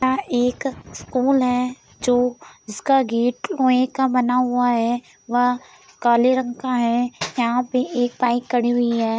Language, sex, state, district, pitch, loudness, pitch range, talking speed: Hindi, female, Uttar Pradesh, Deoria, 245 Hz, -20 LUFS, 240-255 Hz, 155 wpm